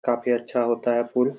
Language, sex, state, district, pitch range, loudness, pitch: Hindi, male, Jharkhand, Jamtara, 120-125 Hz, -24 LUFS, 120 Hz